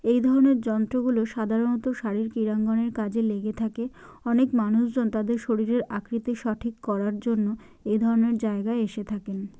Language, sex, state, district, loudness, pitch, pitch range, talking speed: Bengali, female, West Bengal, Jalpaiguri, -26 LUFS, 225 Hz, 215-235 Hz, 150 wpm